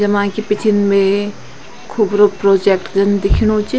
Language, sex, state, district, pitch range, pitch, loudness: Garhwali, female, Uttarakhand, Tehri Garhwal, 200-210 Hz, 205 Hz, -14 LUFS